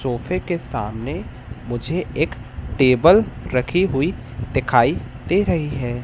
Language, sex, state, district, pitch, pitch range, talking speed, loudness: Hindi, male, Madhya Pradesh, Katni, 130 Hz, 120-170 Hz, 120 wpm, -20 LUFS